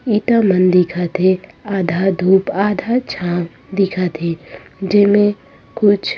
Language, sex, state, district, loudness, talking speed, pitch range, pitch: Chhattisgarhi, female, Chhattisgarh, Rajnandgaon, -16 LUFS, 115 wpm, 180-205 Hz, 190 Hz